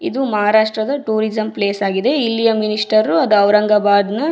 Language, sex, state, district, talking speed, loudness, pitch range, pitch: Kannada, female, Karnataka, Raichur, 140 wpm, -15 LUFS, 205-220 Hz, 215 Hz